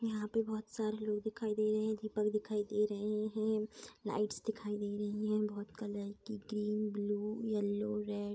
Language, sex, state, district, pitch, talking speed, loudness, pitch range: Hindi, female, Bihar, East Champaran, 210 Hz, 185 wpm, -38 LUFS, 210-215 Hz